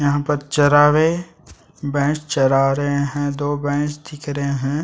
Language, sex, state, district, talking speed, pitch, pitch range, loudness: Hindi, male, Chhattisgarh, Sukma, 160 wpm, 145 Hz, 140-150 Hz, -19 LUFS